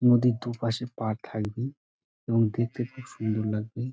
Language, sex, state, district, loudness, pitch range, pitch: Bengali, male, West Bengal, Dakshin Dinajpur, -29 LUFS, 110-125 Hz, 115 Hz